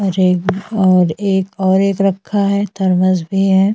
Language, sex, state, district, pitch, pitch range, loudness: Hindi, female, Chhattisgarh, Sukma, 190 Hz, 185-200 Hz, -15 LUFS